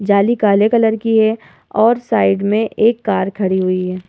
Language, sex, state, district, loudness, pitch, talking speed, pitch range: Hindi, female, Uttar Pradesh, Muzaffarnagar, -15 LUFS, 215 Hz, 190 wpm, 190-225 Hz